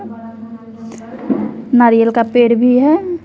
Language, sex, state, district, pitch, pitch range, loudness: Hindi, female, Bihar, West Champaran, 235 Hz, 230-250 Hz, -12 LUFS